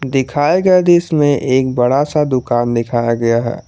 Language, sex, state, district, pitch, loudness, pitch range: Hindi, male, Jharkhand, Garhwa, 130 Hz, -14 LUFS, 120-150 Hz